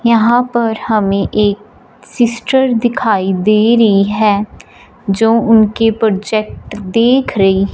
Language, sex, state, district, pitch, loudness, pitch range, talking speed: Hindi, female, Punjab, Fazilka, 220 Hz, -12 LUFS, 205-235 Hz, 110 wpm